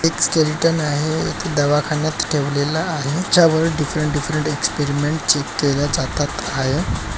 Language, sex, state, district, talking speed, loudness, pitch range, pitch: Marathi, male, Maharashtra, Chandrapur, 115 wpm, -19 LUFS, 145-160 Hz, 150 Hz